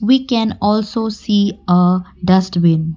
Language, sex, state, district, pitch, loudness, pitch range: English, female, Assam, Kamrup Metropolitan, 200 Hz, -15 LUFS, 180-220 Hz